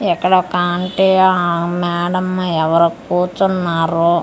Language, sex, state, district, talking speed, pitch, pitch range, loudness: Telugu, female, Andhra Pradesh, Manyam, 115 wpm, 175 Hz, 170-185 Hz, -15 LUFS